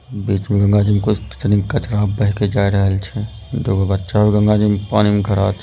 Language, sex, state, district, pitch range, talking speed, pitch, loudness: Angika, male, Bihar, Begusarai, 100-105 Hz, 225 wpm, 105 Hz, -17 LUFS